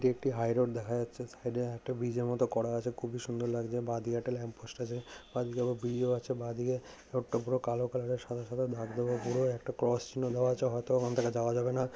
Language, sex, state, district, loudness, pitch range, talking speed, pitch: Bengali, male, West Bengal, North 24 Parganas, -34 LUFS, 120-125 Hz, 255 wpm, 120 Hz